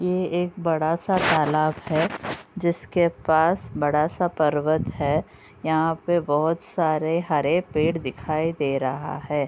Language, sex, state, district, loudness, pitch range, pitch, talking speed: Hindi, female, Uttar Pradesh, Budaun, -23 LUFS, 150-170 Hz, 160 Hz, 135 wpm